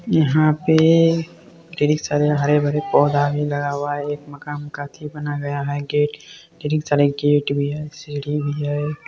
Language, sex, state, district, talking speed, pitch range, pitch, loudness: Hindi, male, Bihar, Purnia, 160 wpm, 145-150 Hz, 145 Hz, -20 LUFS